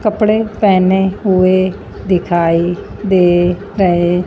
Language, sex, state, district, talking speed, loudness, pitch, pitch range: Hindi, female, Punjab, Fazilka, 85 wpm, -13 LUFS, 185 Hz, 175-200 Hz